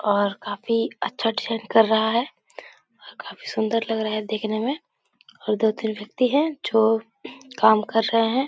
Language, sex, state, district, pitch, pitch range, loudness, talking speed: Hindi, female, Bihar, Supaul, 225 Hz, 220-260 Hz, -22 LUFS, 170 wpm